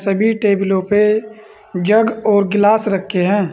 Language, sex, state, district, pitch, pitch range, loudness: Hindi, male, Uttar Pradesh, Saharanpur, 205 Hz, 195-215 Hz, -15 LUFS